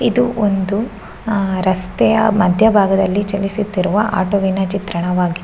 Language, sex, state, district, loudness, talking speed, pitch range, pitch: Kannada, female, Karnataka, Shimoga, -16 LUFS, 90 wpm, 185-215 Hz, 200 Hz